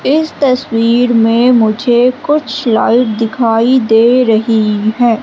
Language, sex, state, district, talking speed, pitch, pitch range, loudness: Hindi, female, Madhya Pradesh, Katni, 115 wpm, 235 Hz, 225-255 Hz, -11 LUFS